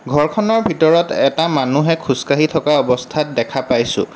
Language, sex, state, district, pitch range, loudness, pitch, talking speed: Assamese, male, Assam, Kamrup Metropolitan, 135-160 Hz, -16 LUFS, 150 Hz, 130 wpm